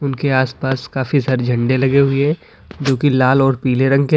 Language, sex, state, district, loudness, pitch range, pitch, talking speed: Hindi, male, Uttar Pradesh, Lalitpur, -16 LUFS, 130-140 Hz, 135 Hz, 230 wpm